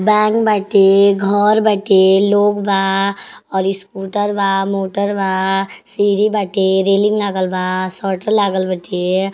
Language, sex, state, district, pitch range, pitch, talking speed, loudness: Bhojpuri, female, Uttar Pradesh, Deoria, 190-205 Hz, 195 Hz, 115 wpm, -15 LUFS